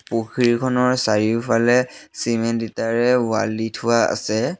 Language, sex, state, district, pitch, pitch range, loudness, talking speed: Assamese, male, Assam, Sonitpur, 115 Hz, 110-125 Hz, -20 LUFS, 105 wpm